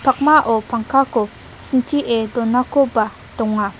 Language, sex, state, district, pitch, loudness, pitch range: Garo, female, Meghalaya, South Garo Hills, 235 Hz, -18 LUFS, 225-270 Hz